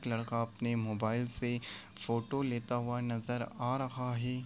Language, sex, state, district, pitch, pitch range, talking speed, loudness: Hindi, male, Chhattisgarh, Raigarh, 120 Hz, 115-125 Hz, 160 wpm, -36 LUFS